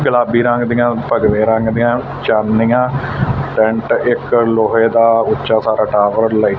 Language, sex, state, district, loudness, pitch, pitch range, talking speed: Punjabi, male, Punjab, Fazilka, -14 LUFS, 115 Hz, 110-120 Hz, 135 wpm